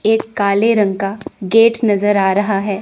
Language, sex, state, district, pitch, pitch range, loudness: Hindi, female, Chandigarh, Chandigarh, 205 Hz, 200-220 Hz, -15 LUFS